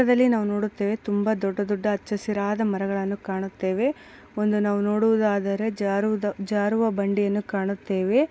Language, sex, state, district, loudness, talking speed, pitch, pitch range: Kannada, female, Karnataka, Dakshina Kannada, -24 LUFS, 115 wpm, 205 Hz, 200-215 Hz